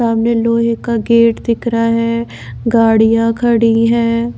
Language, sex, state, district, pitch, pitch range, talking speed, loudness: Hindi, female, Bihar, Katihar, 230 Hz, 230-235 Hz, 135 wpm, -13 LUFS